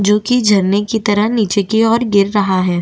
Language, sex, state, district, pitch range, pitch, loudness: Hindi, female, Chhattisgarh, Bastar, 200-225 Hz, 205 Hz, -14 LUFS